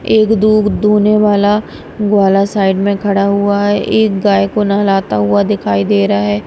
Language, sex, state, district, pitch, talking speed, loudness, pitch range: Hindi, female, Punjab, Kapurthala, 200 Hz, 175 wpm, -12 LUFS, 195-210 Hz